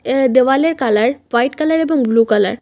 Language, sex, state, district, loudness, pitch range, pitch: Bengali, female, West Bengal, Cooch Behar, -14 LUFS, 230-280 Hz, 255 Hz